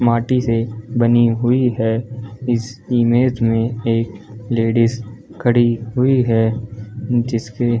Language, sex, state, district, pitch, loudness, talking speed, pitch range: Hindi, male, Chhattisgarh, Balrampur, 115 Hz, -18 LUFS, 115 wpm, 115-120 Hz